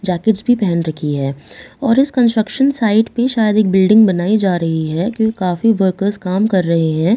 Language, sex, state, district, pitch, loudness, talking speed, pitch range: Hindi, female, Bihar, Katihar, 200 Hz, -15 LUFS, 210 wpm, 175-220 Hz